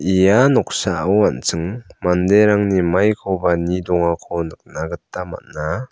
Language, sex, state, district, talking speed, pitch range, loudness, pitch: Garo, male, Meghalaya, South Garo Hills, 100 wpm, 85-105 Hz, -18 LUFS, 90 Hz